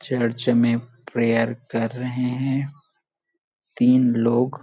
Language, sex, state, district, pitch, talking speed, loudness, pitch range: Hindi, male, Chhattisgarh, Bilaspur, 125 Hz, 105 wpm, -22 LUFS, 115-135 Hz